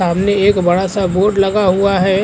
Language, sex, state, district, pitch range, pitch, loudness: Hindi, female, Chhattisgarh, Korba, 185-200 Hz, 195 Hz, -13 LUFS